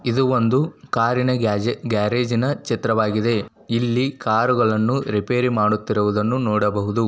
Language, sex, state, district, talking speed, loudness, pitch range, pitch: Kannada, male, Karnataka, Bijapur, 95 wpm, -20 LUFS, 105-125 Hz, 115 Hz